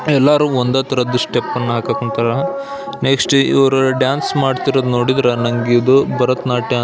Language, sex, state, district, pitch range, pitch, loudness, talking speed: Kannada, male, Karnataka, Belgaum, 125-135 Hz, 130 Hz, -15 LUFS, 140 wpm